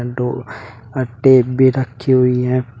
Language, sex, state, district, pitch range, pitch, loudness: Hindi, male, Uttar Pradesh, Shamli, 120-130 Hz, 125 Hz, -15 LUFS